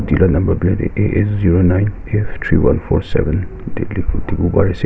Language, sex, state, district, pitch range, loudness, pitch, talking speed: Nagamese, male, Nagaland, Kohima, 85-105 Hz, -16 LUFS, 95 Hz, 185 wpm